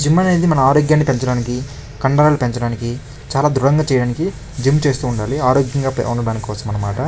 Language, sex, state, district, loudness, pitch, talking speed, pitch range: Telugu, male, Andhra Pradesh, Krishna, -17 LUFS, 135 Hz, 135 wpm, 120-145 Hz